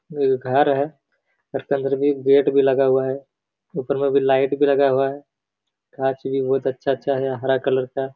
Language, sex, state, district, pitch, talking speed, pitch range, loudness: Hindi, male, Bihar, Supaul, 135 Hz, 200 wpm, 135-140 Hz, -20 LUFS